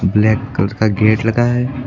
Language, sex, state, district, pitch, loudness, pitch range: Hindi, male, Uttar Pradesh, Lucknow, 110 Hz, -15 LUFS, 105-120 Hz